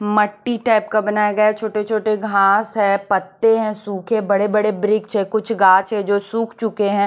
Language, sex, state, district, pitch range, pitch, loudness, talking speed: Hindi, female, Chhattisgarh, Raipur, 200-220 Hz, 210 Hz, -18 LUFS, 185 wpm